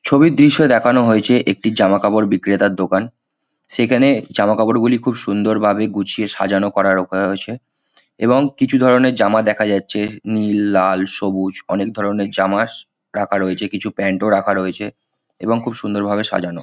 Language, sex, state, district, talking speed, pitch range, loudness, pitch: Bengali, male, West Bengal, Malda, 140 wpm, 100-115 Hz, -16 LUFS, 105 Hz